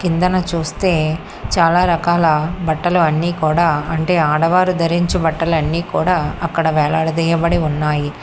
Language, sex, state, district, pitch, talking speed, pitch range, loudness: Telugu, female, Telangana, Hyderabad, 165 Hz, 115 wpm, 155-175 Hz, -16 LUFS